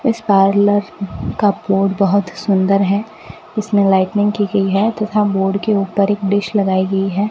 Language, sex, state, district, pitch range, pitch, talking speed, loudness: Hindi, female, Rajasthan, Bikaner, 195-210 Hz, 200 Hz, 170 wpm, -16 LUFS